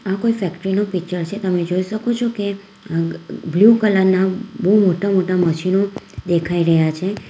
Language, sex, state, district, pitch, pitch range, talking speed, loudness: Gujarati, female, Gujarat, Valsad, 190 Hz, 175-205 Hz, 175 wpm, -18 LUFS